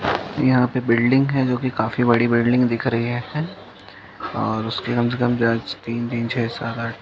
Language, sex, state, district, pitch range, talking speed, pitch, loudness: Hindi, male, Uttar Pradesh, Muzaffarnagar, 115-125 Hz, 220 wpm, 120 Hz, -21 LUFS